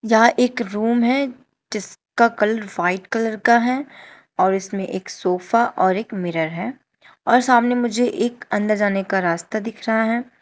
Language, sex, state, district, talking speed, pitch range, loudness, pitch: Hindi, female, Uttar Pradesh, Shamli, 165 wpm, 195-240 Hz, -20 LUFS, 225 Hz